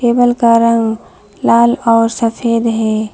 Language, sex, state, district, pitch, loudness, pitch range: Hindi, female, West Bengal, Alipurduar, 230 Hz, -12 LUFS, 225-235 Hz